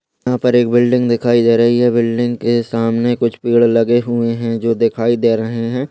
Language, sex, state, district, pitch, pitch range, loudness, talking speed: Hindi, male, Goa, North and South Goa, 120 Hz, 115-120 Hz, -15 LUFS, 215 wpm